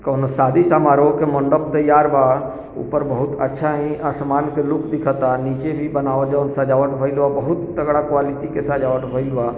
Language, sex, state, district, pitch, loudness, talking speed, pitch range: Bhojpuri, male, Bihar, East Champaran, 140 Hz, -18 LUFS, 180 wpm, 135-150 Hz